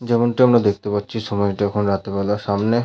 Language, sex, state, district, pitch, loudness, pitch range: Bengali, male, West Bengal, Paschim Medinipur, 105 Hz, -19 LUFS, 100-120 Hz